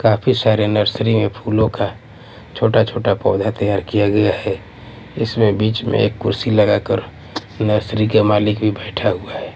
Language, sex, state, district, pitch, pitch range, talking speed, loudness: Hindi, male, Maharashtra, Mumbai Suburban, 105 Hz, 105-110 Hz, 155 wpm, -17 LUFS